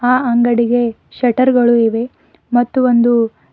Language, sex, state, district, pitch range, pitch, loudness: Kannada, female, Karnataka, Bidar, 235-245 Hz, 240 Hz, -14 LUFS